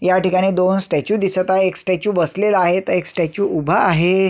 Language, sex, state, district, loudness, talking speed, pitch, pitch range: Marathi, male, Maharashtra, Sindhudurg, -16 LUFS, 210 wpm, 185 Hz, 180-195 Hz